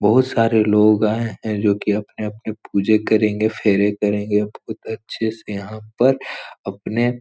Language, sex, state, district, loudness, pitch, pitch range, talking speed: Hindi, male, Bihar, Supaul, -19 LUFS, 110 Hz, 105-110 Hz, 165 wpm